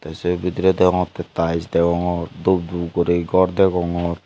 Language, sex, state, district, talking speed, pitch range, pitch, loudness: Chakma, male, Tripura, Unakoti, 140 wpm, 85-90 Hz, 85 Hz, -19 LUFS